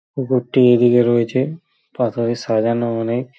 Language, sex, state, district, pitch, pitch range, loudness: Bengali, male, West Bengal, Purulia, 120 Hz, 115-130 Hz, -17 LUFS